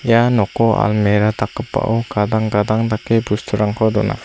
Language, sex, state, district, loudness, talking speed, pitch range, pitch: Garo, female, Meghalaya, South Garo Hills, -17 LUFS, 125 wpm, 105-115 Hz, 110 Hz